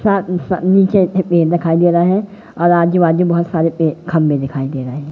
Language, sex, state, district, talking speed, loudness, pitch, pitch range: Hindi, male, Madhya Pradesh, Katni, 225 wpm, -14 LUFS, 170 Hz, 165-185 Hz